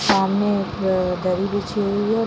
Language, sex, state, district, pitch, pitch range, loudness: Hindi, female, Bihar, Araria, 200 Hz, 190-205 Hz, -21 LUFS